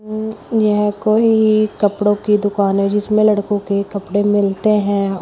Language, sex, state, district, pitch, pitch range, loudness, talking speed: Hindi, female, Uttar Pradesh, Shamli, 205 Hz, 200-215 Hz, -16 LUFS, 150 wpm